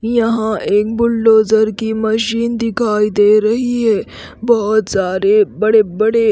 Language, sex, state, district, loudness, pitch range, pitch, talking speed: Hindi, female, Haryana, Rohtak, -14 LUFS, 210-230 Hz, 220 Hz, 115 wpm